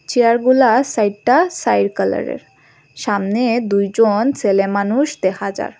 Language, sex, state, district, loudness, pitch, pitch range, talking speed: Bengali, female, Assam, Hailakandi, -16 LUFS, 225 Hz, 200-255 Hz, 105 wpm